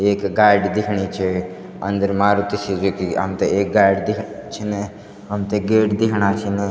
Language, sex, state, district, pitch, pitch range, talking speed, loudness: Garhwali, male, Uttarakhand, Tehri Garhwal, 100 Hz, 100-105 Hz, 135 wpm, -19 LUFS